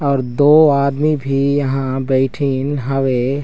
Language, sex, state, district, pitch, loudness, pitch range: Chhattisgarhi, male, Chhattisgarh, Raigarh, 135 Hz, -15 LUFS, 135-145 Hz